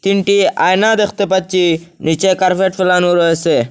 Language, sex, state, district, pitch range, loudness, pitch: Bengali, male, Assam, Hailakandi, 175-195 Hz, -13 LUFS, 185 Hz